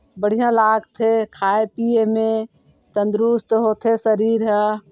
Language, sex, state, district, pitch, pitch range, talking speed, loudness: Chhattisgarhi, female, Chhattisgarh, Sarguja, 220 Hz, 210-225 Hz, 100 wpm, -19 LUFS